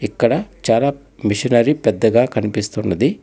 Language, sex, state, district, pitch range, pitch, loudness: Telugu, male, Telangana, Hyderabad, 105-140 Hz, 120 Hz, -17 LUFS